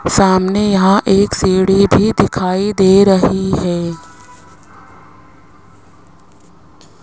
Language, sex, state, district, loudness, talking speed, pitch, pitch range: Hindi, male, Rajasthan, Jaipur, -13 LUFS, 75 wpm, 190 Hz, 165-195 Hz